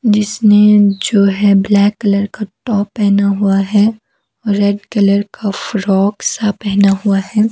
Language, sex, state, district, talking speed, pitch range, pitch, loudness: Hindi, female, Himachal Pradesh, Shimla, 145 wpm, 200-210 Hz, 205 Hz, -13 LUFS